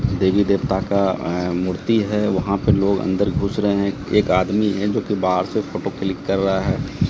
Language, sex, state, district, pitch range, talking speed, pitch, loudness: Hindi, male, Bihar, Katihar, 95-105 Hz, 210 wpm, 100 Hz, -20 LUFS